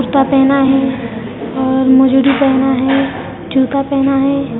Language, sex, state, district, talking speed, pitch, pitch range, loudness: Hindi, female, Maharashtra, Mumbai Suburban, 130 wpm, 265 Hz, 260-275 Hz, -12 LUFS